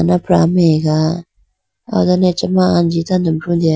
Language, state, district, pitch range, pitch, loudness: Idu Mishmi, Arunachal Pradesh, Lower Dibang Valley, 165-180 Hz, 170 Hz, -14 LUFS